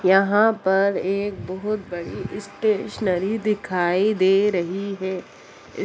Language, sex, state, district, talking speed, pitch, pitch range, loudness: Hindi, female, Bihar, Jamui, 105 wpm, 195 Hz, 185-205 Hz, -22 LUFS